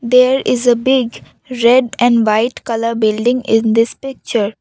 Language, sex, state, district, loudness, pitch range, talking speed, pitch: English, female, Assam, Kamrup Metropolitan, -14 LUFS, 225-255 Hz, 155 wpm, 240 Hz